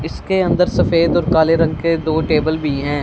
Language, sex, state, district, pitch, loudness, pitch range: Hindi, female, Punjab, Fazilka, 160 Hz, -16 LUFS, 155-170 Hz